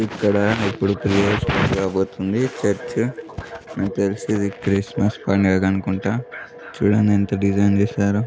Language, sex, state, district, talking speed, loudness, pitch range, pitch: Telugu, male, Telangana, Nalgonda, 100 wpm, -20 LUFS, 100-105 Hz, 100 Hz